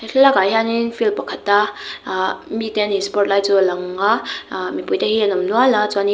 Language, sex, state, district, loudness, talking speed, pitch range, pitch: Mizo, female, Mizoram, Aizawl, -18 LUFS, 265 wpm, 195-220 Hz, 205 Hz